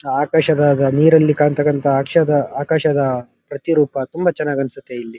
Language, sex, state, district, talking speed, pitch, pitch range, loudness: Kannada, male, Karnataka, Dharwad, 105 wpm, 145 Hz, 135-155 Hz, -16 LUFS